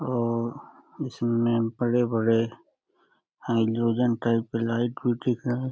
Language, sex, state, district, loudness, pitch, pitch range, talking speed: Hindi, male, Uttar Pradesh, Deoria, -26 LUFS, 120 Hz, 115-125 Hz, 115 wpm